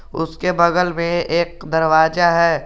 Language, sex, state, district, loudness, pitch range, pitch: Hindi, male, Jharkhand, Garhwa, -17 LUFS, 160-175 Hz, 170 Hz